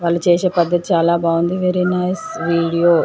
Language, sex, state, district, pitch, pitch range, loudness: Telugu, female, Andhra Pradesh, Chittoor, 175 Hz, 170-180 Hz, -17 LUFS